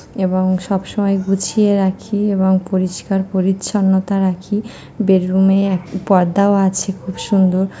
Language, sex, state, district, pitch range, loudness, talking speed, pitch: Bengali, female, West Bengal, North 24 Parganas, 185-200 Hz, -16 LUFS, 130 wpm, 190 Hz